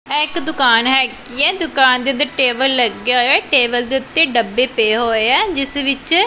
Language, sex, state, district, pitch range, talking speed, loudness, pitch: Punjabi, female, Punjab, Pathankot, 245-295 Hz, 200 wpm, -14 LUFS, 265 Hz